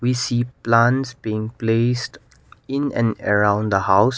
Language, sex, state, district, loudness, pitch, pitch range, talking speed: English, male, Nagaland, Kohima, -20 LUFS, 115 Hz, 110-125 Hz, 145 wpm